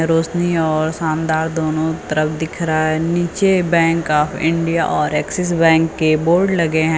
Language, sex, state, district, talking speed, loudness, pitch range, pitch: Hindi, female, Uttar Pradesh, Lucknow, 165 wpm, -17 LUFS, 155-170 Hz, 160 Hz